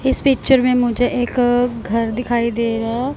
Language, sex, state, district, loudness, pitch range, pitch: Hindi, male, Punjab, Kapurthala, -17 LUFS, 235-255 Hz, 245 Hz